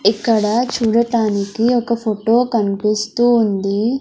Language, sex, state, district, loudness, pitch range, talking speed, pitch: Telugu, female, Andhra Pradesh, Sri Satya Sai, -16 LUFS, 210-235 Hz, 90 wpm, 225 Hz